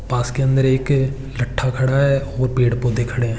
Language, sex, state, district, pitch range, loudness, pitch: Hindi, male, Rajasthan, Churu, 120-135 Hz, -19 LUFS, 130 Hz